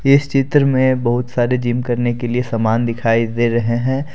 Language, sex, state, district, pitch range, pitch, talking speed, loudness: Hindi, male, Jharkhand, Deoghar, 120-130 Hz, 120 Hz, 205 wpm, -17 LUFS